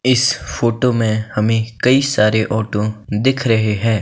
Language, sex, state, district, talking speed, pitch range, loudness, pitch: Hindi, male, Himachal Pradesh, Shimla, 150 wpm, 110-125 Hz, -16 LUFS, 115 Hz